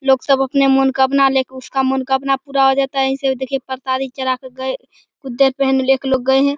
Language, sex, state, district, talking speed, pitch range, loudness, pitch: Hindi, male, Bihar, Begusarai, 190 wpm, 265-270 Hz, -17 LUFS, 265 Hz